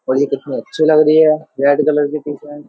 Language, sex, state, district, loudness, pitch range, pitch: Hindi, male, Uttar Pradesh, Jyotiba Phule Nagar, -14 LUFS, 145-155 Hz, 150 Hz